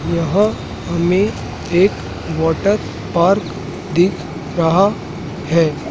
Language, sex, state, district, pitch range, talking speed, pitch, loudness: Hindi, male, Madhya Pradesh, Dhar, 160-190 Hz, 80 wpm, 170 Hz, -17 LUFS